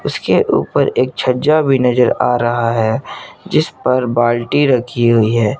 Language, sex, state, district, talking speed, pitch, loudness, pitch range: Hindi, male, Jharkhand, Garhwa, 160 wpm, 125 Hz, -14 LUFS, 120-130 Hz